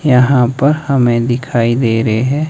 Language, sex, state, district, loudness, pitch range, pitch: Hindi, male, Himachal Pradesh, Shimla, -13 LUFS, 120-140 Hz, 125 Hz